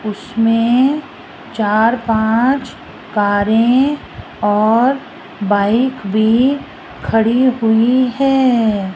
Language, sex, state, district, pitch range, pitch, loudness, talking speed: Hindi, female, Rajasthan, Jaipur, 215-255 Hz, 230 Hz, -14 LUFS, 65 wpm